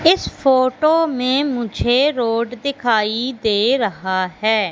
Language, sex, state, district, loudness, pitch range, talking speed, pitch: Hindi, female, Madhya Pradesh, Katni, -18 LUFS, 220-275 Hz, 115 wpm, 245 Hz